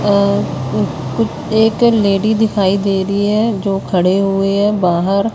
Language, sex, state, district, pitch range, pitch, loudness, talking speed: Hindi, female, Haryana, Rohtak, 195-215 Hz, 200 Hz, -15 LUFS, 145 wpm